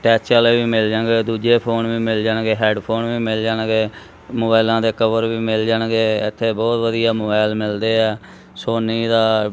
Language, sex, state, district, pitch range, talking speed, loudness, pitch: Punjabi, male, Punjab, Kapurthala, 110-115 Hz, 175 wpm, -18 LUFS, 115 Hz